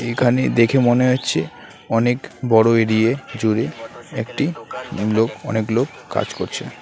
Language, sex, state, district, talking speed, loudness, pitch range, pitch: Bengali, male, West Bengal, Alipurduar, 125 wpm, -19 LUFS, 110-125 Hz, 120 Hz